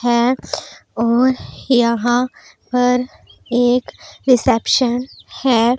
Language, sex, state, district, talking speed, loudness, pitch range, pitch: Hindi, female, Punjab, Pathankot, 70 wpm, -17 LUFS, 240-255 Hz, 245 Hz